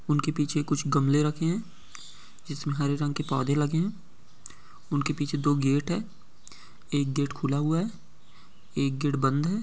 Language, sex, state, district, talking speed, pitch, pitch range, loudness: Hindi, male, Rajasthan, Churu, 170 wpm, 150 Hz, 145-160 Hz, -28 LUFS